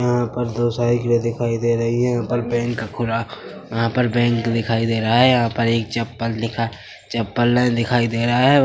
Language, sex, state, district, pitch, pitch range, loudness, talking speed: Hindi, male, Chhattisgarh, Bilaspur, 120 Hz, 115-120 Hz, -20 LUFS, 200 wpm